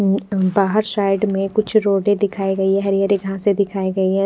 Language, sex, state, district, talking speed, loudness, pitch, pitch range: Hindi, female, Odisha, Khordha, 195 wpm, -18 LUFS, 195 Hz, 195-205 Hz